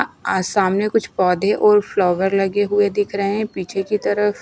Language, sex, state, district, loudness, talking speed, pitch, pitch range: Hindi, female, Himachal Pradesh, Shimla, -18 LUFS, 190 wpm, 200 Hz, 190-210 Hz